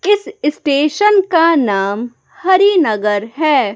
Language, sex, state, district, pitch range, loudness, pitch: Hindi, female, Bihar, West Champaran, 240-380 Hz, -14 LUFS, 305 Hz